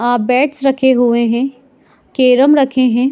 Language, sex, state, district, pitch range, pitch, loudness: Hindi, female, Chhattisgarh, Bilaspur, 245-270 Hz, 260 Hz, -13 LUFS